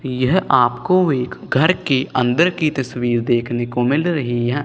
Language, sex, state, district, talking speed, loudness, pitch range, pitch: Hindi, male, Punjab, Kapurthala, 165 wpm, -18 LUFS, 120-160 Hz, 130 Hz